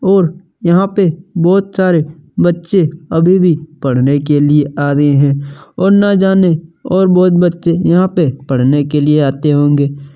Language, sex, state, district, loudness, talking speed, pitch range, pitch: Hindi, male, Chhattisgarh, Kabirdham, -12 LUFS, 160 wpm, 145-185 Hz, 165 Hz